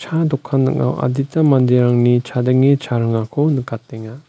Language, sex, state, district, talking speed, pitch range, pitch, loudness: Garo, male, Meghalaya, West Garo Hills, 125 wpm, 120-140 Hz, 130 Hz, -16 LUFS